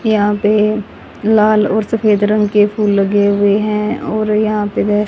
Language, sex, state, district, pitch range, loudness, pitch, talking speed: Hindi, female, Haryana, Jhajjar, 205-215 Hz, -14 LUFS, 210 Hz, 165 wpm